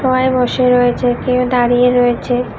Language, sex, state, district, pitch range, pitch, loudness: Bengali, female, Tripura, West Tripura, 245-250 Hz, 250 Hz, -13 LUFS